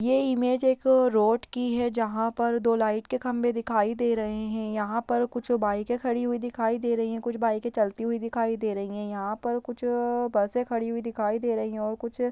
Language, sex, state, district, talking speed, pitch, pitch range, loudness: Hindi, female, Bihar, Jamui, 225 wpm, 235 Hz, 220-240 Hz, -27 LUFS